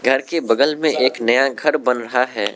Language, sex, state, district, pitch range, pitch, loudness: Hindi, male, Arunachal Pradesh, Lower Dibang Valley, 125-150 Hz, 130 Hz, -17 LUFS